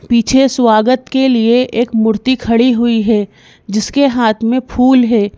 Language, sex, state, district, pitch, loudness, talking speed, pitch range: Hindi, female, Madhya Pradesh, Bhopal, 235 Hz, -12 LUFS, 155 wpm, 225-255 Hz